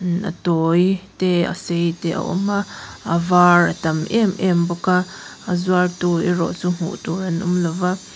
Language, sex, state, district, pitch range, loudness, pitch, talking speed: Mizo, female, Mizoram, Aizawl, 170-185 Hz, -19 LUFS, 180 Hz, 200 wpm